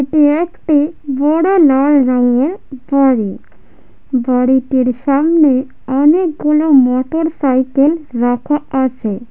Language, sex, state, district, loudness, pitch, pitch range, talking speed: Bengali, female, West Bengal, Jhargram, -13 LUFS, 275 Hz, 255-300 Hz, 85 wpm